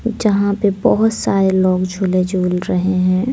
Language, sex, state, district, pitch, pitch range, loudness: Hindi, female, Madhya Pradesh, Dhar, 190 Hz, 185-210 Hz, -16 LUFS